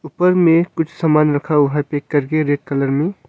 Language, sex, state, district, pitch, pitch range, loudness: Hindi, male, Arunachal Pradesh, Longding, 150 Hz, 145-165 Hz, -16 LUFS